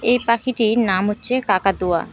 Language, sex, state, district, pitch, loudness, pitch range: Bengali, female, West Bengal, Cooch Behar, 220 Hz, -18 LUFS, 190-245 Hz